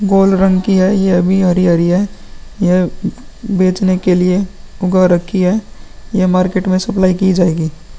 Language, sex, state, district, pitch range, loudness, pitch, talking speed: Hindi, male, Uttar Pradesh, Muzaffarnagar, 180-195 Hz, -13 LUFS, 185 Hz, 160 wpm